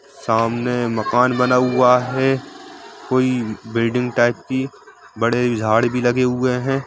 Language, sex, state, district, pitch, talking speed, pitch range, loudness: Hindi, male, Jharkhand, Jamtara, 125 Hz, 130 wpm, 115-130 Hz, -18 LUFS